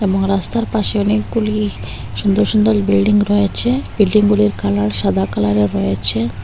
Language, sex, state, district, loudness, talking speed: Bengali, female, Assam, Hailakandi, -15 LUFS, 120 wpm